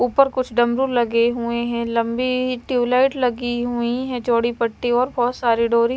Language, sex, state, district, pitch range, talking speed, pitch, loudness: Hindi, female, Himachal Pradesh, Shimla, 235-250 Hz, 170 wpm, 240 Hz, -20 LUFS